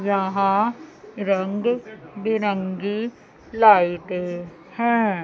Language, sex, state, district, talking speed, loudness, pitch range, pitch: Hindi, female, Chandigarh, Chandigarh, 55 wpm, -22 LUFS, 185-225 Hz, 205 Hz